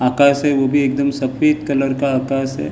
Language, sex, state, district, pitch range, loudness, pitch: Hindi, male, Maharashtra, Gondia, 135-140 Hz, -17 LUFS, 135 Hz